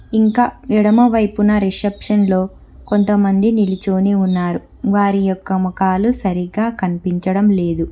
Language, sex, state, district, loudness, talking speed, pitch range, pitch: Telugu, female, Telangana, Hyderabad, -16 LUFS, 90 wpm, 190-210 Hz, 200 Hz